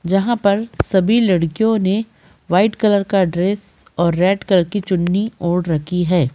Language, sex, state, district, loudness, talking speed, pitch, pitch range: Hindi, female, Bihar, Gopalganj, -17 LUFS, 160 wpm, 190 Hz, 175-205 Hz